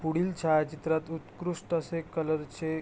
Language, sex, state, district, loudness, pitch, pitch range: Marathi, male, Maharashtra, Pune, -31 LUFS, 160 Hz, 155-170 Hz